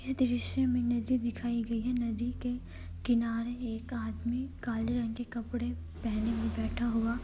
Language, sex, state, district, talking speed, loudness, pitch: Hindi, female, Uttar Pradesh, Etah, 165 wpm, -33 LUFS, 230 Hz